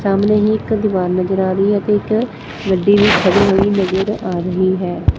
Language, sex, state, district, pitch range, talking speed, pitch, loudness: Punjabi, female, Punjab, Fazilka, 185-205 Hz, 205 wpm, 195 Hz, -15 LUFS